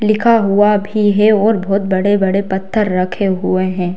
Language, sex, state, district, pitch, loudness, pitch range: Hindi, female, Bihar, Darbhanga, 200 Hz, -14 LUFS, 190-210 Hz